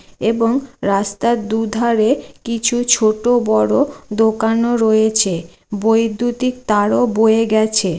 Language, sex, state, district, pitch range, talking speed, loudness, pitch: Bengali, female, West Bengal, Jalpaiguri, 215-235 Hz, 90 wpm, -16 LUFS, 225 Hz